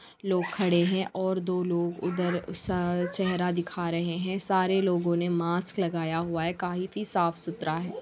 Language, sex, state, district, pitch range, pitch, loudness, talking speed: Hindi, female, Chhattisgarh, Bilaspur, 170-185 Hz, 180 Hz, -28 LUFS, 170 wpm